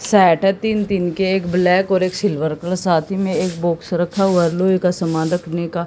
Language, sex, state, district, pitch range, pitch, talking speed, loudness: Hindi, female, Haryana, Jhajjar, 170-190 Hz, 180 Hz, 225 wpm, -18 LUFS